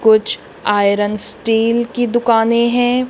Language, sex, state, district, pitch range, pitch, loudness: Hindi, female, Punjab, Kapurthala, 215-240 Hz, 230 Hz, -15 LUFS